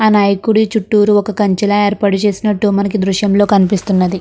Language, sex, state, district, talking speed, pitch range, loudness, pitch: Telugu, female, Andhra Pradesh, Krishna, 145 wpm, 200-210 Hz, -13 LUFS, 205 Hz